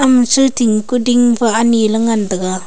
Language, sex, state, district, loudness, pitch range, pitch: Wancho, female, Arunachal Pradesh, Longding, -13 LUFS, 215-245 Hz, 230 Hz